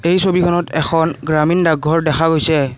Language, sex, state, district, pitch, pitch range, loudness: Assamese, male, Assam, Kamrup Metropolitan, 160 Hz, 155-170 Hz, -15 LUFS